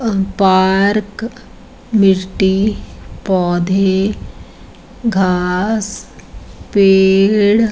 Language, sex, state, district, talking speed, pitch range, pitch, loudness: Hindi, female, Bihar, Sitamarhi, 55 wpm, 190-210 Hz, 195 Hz, -14 LUFS